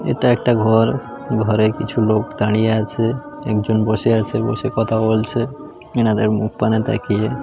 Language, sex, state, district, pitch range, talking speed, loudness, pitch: Bengali, male, West Bengal, Paschim Medinipur, 110-120 Hz, 135 wpm, -18 LUFS, 110 Hz